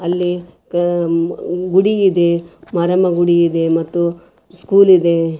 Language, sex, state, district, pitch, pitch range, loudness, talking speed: Kannada, female, Karnataka, Raichur, 175 Hz, 170-180 Hz, -15 LUFS, 100 wpm